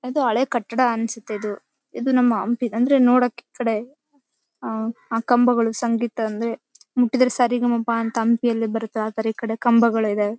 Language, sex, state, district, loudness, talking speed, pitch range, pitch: Kannada, female, Karnataka, Bellary, -21 LUFS, 190 wpm, 225-245 Hz, 235 Hz